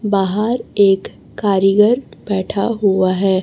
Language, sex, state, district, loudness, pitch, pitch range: Hindi, female, Chhattisgarh, Raipur, -16 LUFS, 200 Hz, 195-210 Hz